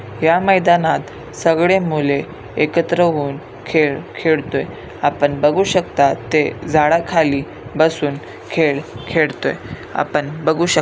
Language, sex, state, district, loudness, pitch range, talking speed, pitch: Marathi, male, Maharashtra, Pune, -17 LUFS, 140-165 Hz, 105 wpm, 155 Hz